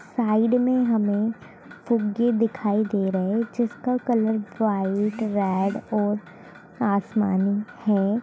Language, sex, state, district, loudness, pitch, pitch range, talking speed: Hindi, female, Bihar, Sitamarhi, -24 LUFS, 215 Hz, 200-230 Hz, 110 wpm